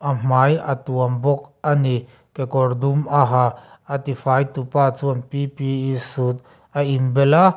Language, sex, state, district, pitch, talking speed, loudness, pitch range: Mizo, male, Mizoram, Aizawl, 135 Hz, 160 wpm, -20 LUFS, 130-145 Hz